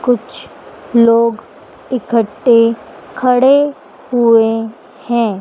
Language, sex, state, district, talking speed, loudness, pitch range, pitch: Hindi, female, Madhya Pradesh, Dhar, 65 wpm, -13 LUFS, 225-250 Hz, 235 Hz